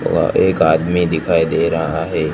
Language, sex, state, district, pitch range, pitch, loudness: Hindi, male, Gujarat, Gandhinagar, 80-85 Hz, 80 Hz, -16 LUFS